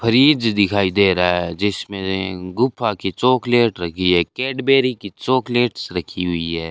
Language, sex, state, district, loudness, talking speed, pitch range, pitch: Hindi, male, Rajasthan, Bikaner, -18 LUFS, 150 wpm, 90-120 Hz, 100 Hz